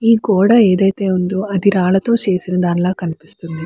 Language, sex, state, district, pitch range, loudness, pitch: Telugu, female, Andhra Pradesh, Chittoor, 180-200 Hz, -15 LUFS, 190 Hz